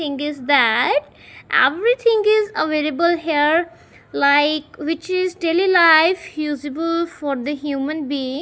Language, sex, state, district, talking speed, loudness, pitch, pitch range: English, female, Punjab, Kapurthala, 120 wpm, -18 LUFS, 305 Hz, 285-340 Hz